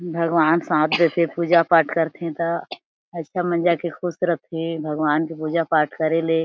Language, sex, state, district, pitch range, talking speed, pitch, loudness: Chhattisgarhi, female, Chhattisgarh, Jashpur, 160-170 Hz, 165 wpm, 165 Hz, -21 LUFS